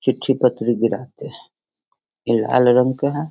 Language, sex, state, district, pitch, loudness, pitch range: Hindi, female, Bihar, Sitamarhi, 125 Hz, -18 LUFS, 120-135 Hz